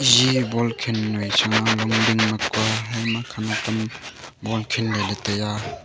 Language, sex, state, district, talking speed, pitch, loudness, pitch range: Wancho, male, Arunachal Pradesh, Longding, 185 wpm, 110 Hz, -21 LUFS, 110-115 Hz